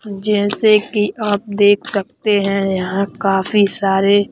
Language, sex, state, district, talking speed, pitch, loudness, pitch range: Hindi, male, Madhya Pradesh, Bhopal, 125 wpm, 205 Hz, -16 LUFS, 195-210 Hz